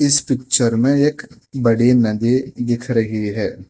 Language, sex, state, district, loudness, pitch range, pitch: Hindi, female, Telangana, Hyderabad, -17 LUFS, 115-135 Hz, 125 Hz